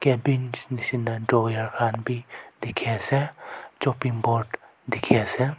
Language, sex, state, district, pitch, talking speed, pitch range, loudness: Nagamese, male, Nagaland, Kohima, 125 Hz, 95 wpm, 115-135 Hz, -26 LUFS